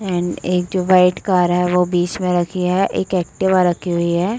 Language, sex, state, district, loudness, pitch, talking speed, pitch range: Hindi, female, Uttar Pradesh, Muzaffarnagar, -17 LUFS, 180 Hz, 220 wpm, 175-185 Hz